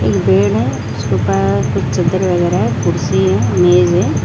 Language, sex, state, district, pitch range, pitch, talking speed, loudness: Hindi, female, Maharashtra, Mumbai Suburban, 100-130 Hz, 110 Hz, 185 wpm, -14 LUFS